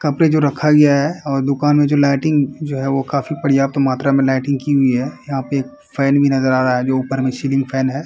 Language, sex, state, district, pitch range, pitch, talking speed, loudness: Hindi, male, Uttar Pradesh, Varanasi, 135-145 Hz, 140 Hz, 270 wpm, -16 LUFS